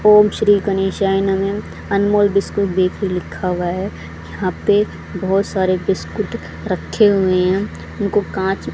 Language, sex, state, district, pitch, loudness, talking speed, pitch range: Hindi, female, Haryana, Charkhi Dadri, 195 Hz, -18 LUFS, 135 wpm, 185-205 Hz